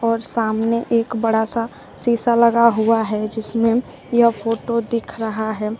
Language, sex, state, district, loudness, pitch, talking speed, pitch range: Hindi, female, Uttar Pradesh, Shamli, -19 LUFS, 230 Hz, 155 wpm, 220-235 Hz